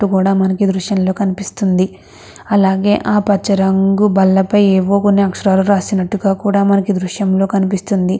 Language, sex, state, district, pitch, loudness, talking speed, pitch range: Telugu, female, Andhra Pradesh, Krishna, 195 Hz, -14 LUFS, 155 wpm, 190-200 Hz